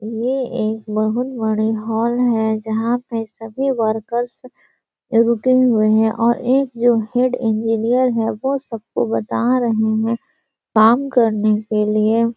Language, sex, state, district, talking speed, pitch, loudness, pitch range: Hindi, female, Bihar, Gaya, 140 wpm, 230 Hz, -18 LUFS, 220-245 Hz